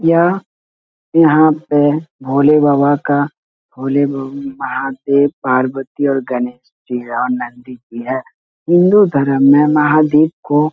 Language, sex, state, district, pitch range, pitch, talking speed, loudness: Hindi, male, Bihar, Jahanabad, 130-150 Hz, 140 Hz, 140 wpm, -14 LUFS